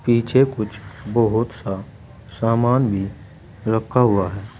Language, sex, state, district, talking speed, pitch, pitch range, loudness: Hindi, male, Uttar Pradesh, Saharanpur, 120 wpm, 110 Hz, 100-120 Hz, -20 LUFS